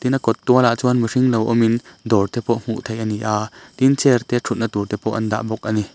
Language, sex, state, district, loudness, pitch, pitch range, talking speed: Mizo, male, Mizoram, Aizawl, -19 LUFS, 115 Hz, 110-120 Hz, 280 wpm